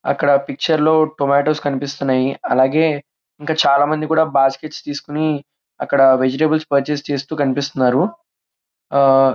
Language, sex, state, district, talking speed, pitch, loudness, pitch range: Telugu, male, Andhra Pradesh, Krishna, 105 wpm, 145 Hz, -17 LUFS, 140-155 Hz